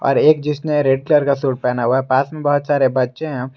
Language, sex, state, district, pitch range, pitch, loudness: Hindi, male, Jharkhand, Garhwa, 130-150 Hz, 140 Hz, -17 LUFS